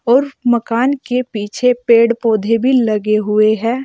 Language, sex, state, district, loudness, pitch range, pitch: Hindi, female, Uttar Pradesh, Saharanpur, -14 LUFS, 220-250 Hz, 235 Hz